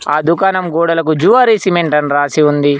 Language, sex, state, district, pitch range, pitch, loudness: Telugu, male, Telangana, Mahabubabad, 150-180 Hz, 160 Hz, -12 LUFS